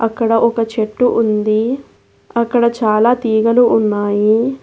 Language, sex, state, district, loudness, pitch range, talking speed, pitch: Telugu, female, Telangana, Hyderabad, -14 LUFS, 215-235 Hz, 105 wpm, 230 Hz